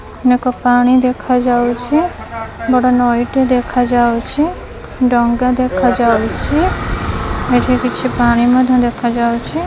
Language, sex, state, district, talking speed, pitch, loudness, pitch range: Odia, female, Odisha, Khordha, 80 wpm, 250 Hz, -14 LUFS, 240-255 Hz